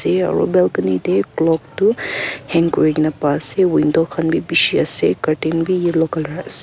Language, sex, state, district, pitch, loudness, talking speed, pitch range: Nagamese, female, Nagaland, Kohima, 165 Hz, -16 LUFS, 170 wpm, 155-180 Hz